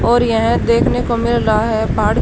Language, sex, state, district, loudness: Hindi, female, Haryana, Charkhi Dadri, -15 LUFS